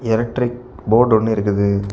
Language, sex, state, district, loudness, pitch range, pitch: Tamil, male, Tamil Nadu, Kanyakumari, -17 LUFS, 100-120 Hz, 110 Hz